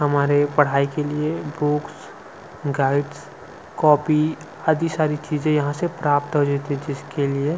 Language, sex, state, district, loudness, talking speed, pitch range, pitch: Hindi, male, Chhattisgarh, Sukma, -21 LUFS, 150 wpm, 145-155 Hz, 145 Hz